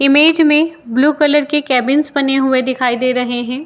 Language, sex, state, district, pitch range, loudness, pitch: Hindi, female, Uttar Pradesh, Jyotiba Phule Nagar, 255-295 Hz, -13 LUFS, 275 Hz